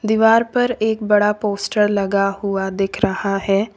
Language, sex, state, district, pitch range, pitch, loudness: Hindi, female, Uttar Pradesh, Lalitpur, 195-220 Hz, 205 Hz, -18 LUFS